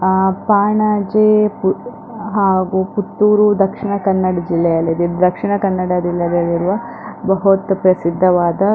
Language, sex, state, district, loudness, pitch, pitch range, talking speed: Kannada, female, Karnataka, Dakshina Kannada, -15 LUFS, 190 Hz, 180-205 Hz, 80 wpm